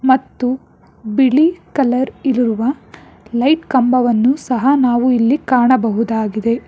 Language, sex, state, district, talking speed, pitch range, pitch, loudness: Kannada, female, Karnataka, Bangalore, 90 wpm, 235-265 Hz, 255 Hz, -15 LUFS